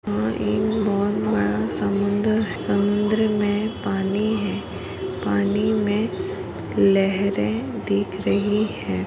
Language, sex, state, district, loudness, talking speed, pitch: Marathi, female, Maharashtra, Sindhudurg, -22 LUFS, 105 wpm, 195 Hz